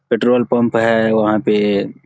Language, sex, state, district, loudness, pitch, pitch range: Hindi, male, Bihar, Supaul, -15 LUFS, 110 Hz, 105-120 Hz